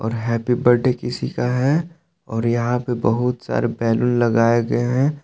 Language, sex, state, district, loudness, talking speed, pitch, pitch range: Hindi, male, Jharkhand, Palamu, -20 LUFS, 160 wpm, 120 Hz, 115-125 Hz